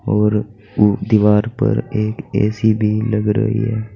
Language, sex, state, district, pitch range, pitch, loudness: Hindi, male, Uttar Pradesh, Saharanpur, 105-110 Hz, 110 Hz, -17 LUFS